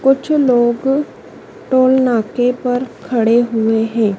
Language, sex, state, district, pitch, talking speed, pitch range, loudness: Hindi, female, Madhya Pradesh, Dhar, 245 Hz, 115 wpm, 230-260 Hz, -15 LUFS